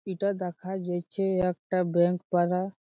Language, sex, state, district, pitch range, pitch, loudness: Bengali, male, West Bengal, Jhargram, 175-190 Hz, 180 Hz, -28 LUFS